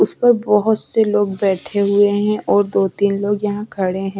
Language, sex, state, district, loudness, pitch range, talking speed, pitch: Hindi, female, Bihar, West Champaran, -17 LUFS, 195-210 Hz, 200 wpm, 205 Hz